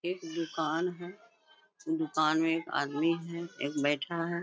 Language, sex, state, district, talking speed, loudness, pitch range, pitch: Hindi, female, Bihar, Bhagalpur, 150 wpm, -32 LUFS, 160-180 Hz, 170 Hz